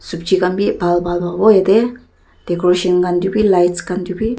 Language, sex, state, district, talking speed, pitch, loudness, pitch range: Nagamese, female, Nagaland, Dimapur, 205 wpm, 180 Hz, -15 LUFS, 175-200 Hz